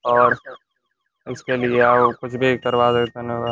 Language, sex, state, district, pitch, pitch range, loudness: Hindi, male, Uttar Pradesh, Gorakhpur, 120 Hz, 120-125 Hz, -18 LUFS